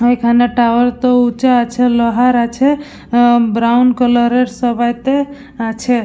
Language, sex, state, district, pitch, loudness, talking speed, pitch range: Bengali, female, West Bengal, Purulia, 245 Hz, -13 LUFS, 130 wpm, 235-250 Hz